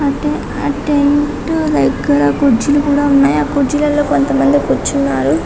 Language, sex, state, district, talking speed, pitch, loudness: Telugu, female, Telangana, Karimnagar, 75 wpm, 280 Hz, -13 LUFS